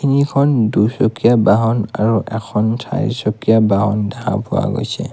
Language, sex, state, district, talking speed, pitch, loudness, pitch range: Assamese, male, Assam, Kamrup Metropolitan, 130 wpm, 110 Hz, -16 LUFS, 105-120 Hz